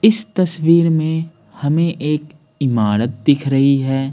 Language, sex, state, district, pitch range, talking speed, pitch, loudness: Hindi, male, Bihar, Patna, 135-165 Hz, 130 wpm, 155 Hz, -17 LUFS